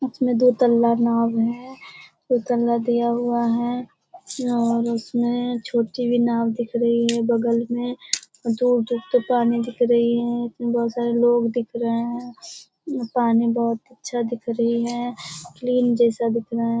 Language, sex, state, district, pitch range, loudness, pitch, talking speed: Hindi, female, Bihar, Begusarai, 235-245 Hz, -22 LUFS, 240 Hz, 155 wpm